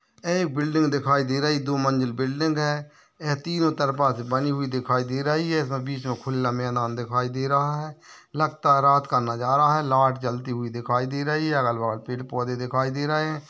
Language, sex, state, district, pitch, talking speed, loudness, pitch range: Hindi, male, Maharashtra, Nagpur, 140 Hz, 205 wpm, -24 LUFS, 125-150 Hz